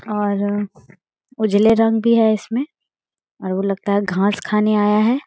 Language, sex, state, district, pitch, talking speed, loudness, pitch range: Hindi, female, Bihar, Gaya, 210 Hz, 160 wpm, -18 LUFS, 205-225 Hz